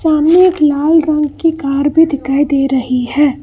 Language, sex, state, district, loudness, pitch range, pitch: Hindi, female, Karnataka, Bangalore, -12 LUFS, 275-320 Hz, 295 Hz